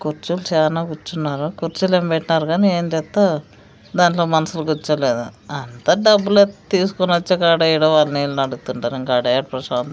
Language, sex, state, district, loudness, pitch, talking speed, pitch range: Telugu, female, Andhra Pradesh, Sri Satya Sai, -18 LUFS, 160 Hz, 125 wpm, 145-175 Hz